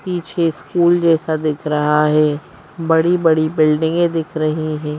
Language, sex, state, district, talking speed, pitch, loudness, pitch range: Hindi, female, Madhya Pradesh, Bhopal, 145 wpm, 155 Hz, -16 LUFS, 155-165 Hz